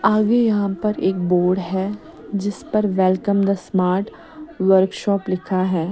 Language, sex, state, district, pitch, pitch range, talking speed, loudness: Hindi, female, Odisha, Sambalpur, 195 Hz, 185-210 Hz, 140 wpm, -20 LUFS